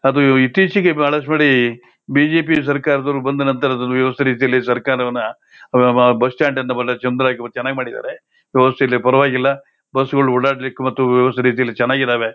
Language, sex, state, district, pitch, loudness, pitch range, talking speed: Kannada, male, Karnataka, Shimoga, 130 Hz, -16 LUFS, 125-140 Hz, 95 wpm